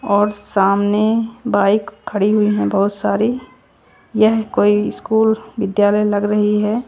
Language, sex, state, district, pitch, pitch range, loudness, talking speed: Hindi, female, Bihar, Katihar, 210 Hz, 205-220 Hz, -16 LUFS, 130 wpm